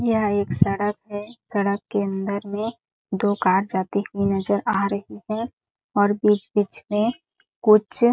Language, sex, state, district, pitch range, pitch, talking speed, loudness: Hindi, female, Chhattisgarh, Sarguja, 200-215 Hz, 205 Hz, 145 wpm, -23 LUFS